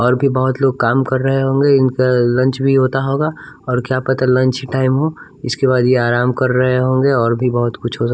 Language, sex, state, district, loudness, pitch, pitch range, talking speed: Hindi, male, Bihar, West Champaran, -15 LUFS, 130 Hz, 125-135 Hz, 250 wpm